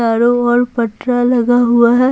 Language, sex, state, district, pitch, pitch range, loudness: Hindi, female, Bihar, Patna, 240 Hz, 235-245 Hz, -13 LUFS